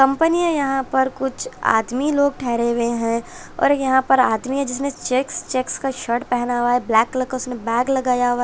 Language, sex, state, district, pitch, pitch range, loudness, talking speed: Hindi, female, Chhattisgarh, Raipur, 255 Hz, 240-270 Hz, -20 LUFS, 215 wpm